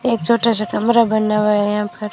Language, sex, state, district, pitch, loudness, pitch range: Hindi, female, Rajasthan, Jaisalmer, 215 Hz, -16 LUFS, 210-235 Hz